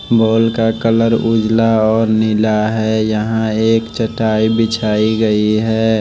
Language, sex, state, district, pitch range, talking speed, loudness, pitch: Hindi, male, Odisha, Malkangiri, 110-115 Hz, 130 wpm, -14 LUFS, 110 Hz